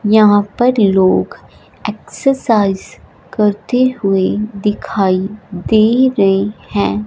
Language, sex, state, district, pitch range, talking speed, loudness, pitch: Hindi, female, Punjab, Fazilka, 195-220 Hz, 85 wpm, -14 LUFS, 205 Hz